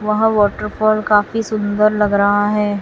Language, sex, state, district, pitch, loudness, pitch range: Hindi, female, Chhattisgarh, Raipur, 210 Hz, -16 LUFS, 205-215 Hz